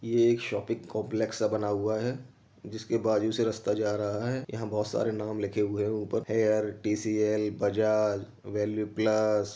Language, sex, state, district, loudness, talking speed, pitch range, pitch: Hindi, male, Uttar Pradesh, Jyotiba Phule Nagar, -29 LUFS, 195 wpm, 105-110 Hz, 110 Hz